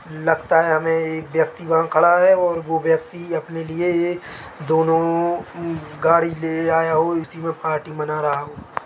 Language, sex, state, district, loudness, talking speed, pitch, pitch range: Hindi, male, Chhattisgarh, Bilaspur, -20 LUFS, 165 wpm, 165 Hz, 160-170 Hz